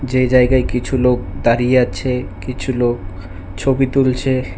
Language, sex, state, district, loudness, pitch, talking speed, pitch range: Bengali, male, Tripura, West Tripura, -17 LUFS, 125 Hz, 130 wpm, 95-130 Hz